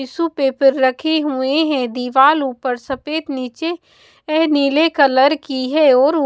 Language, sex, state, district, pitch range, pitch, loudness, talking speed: Hindi, female, Bihar, West Champaran, 265-310 Hz, 280 Hz, -16 LUFS, 135 wpm